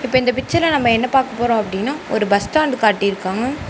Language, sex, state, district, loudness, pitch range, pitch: Tamil, female, Tamil Nadu, Namakkal, -17 LUFS, 210-265 Hz, 240 Hz